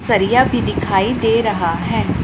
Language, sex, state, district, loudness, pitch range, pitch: Hindi, female, Punjab, Pathankot, -16 LUFS, 180-225 Hz, 205 Hz